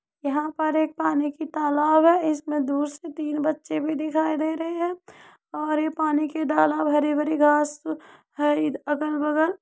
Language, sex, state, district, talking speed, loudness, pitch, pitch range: Hindi, female, Uttar Pradesh, Muzaffarnagar, 175 wpm, -24 LUFS, 305 Hz, 295-315 Hz